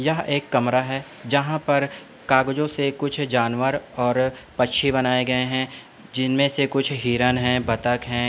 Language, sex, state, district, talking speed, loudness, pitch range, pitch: Hindi, male, Uttar Pradesh, Budaun, 160 wpm, -22 LUFS, 125-140 Hz, 130 Hz